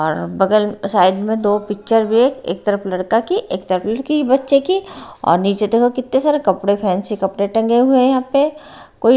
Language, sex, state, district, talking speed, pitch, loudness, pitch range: Hindi, female, Haryana, Rohtak, 205 wpm, 220 Hz, -16 LUFS, 195-255 Hz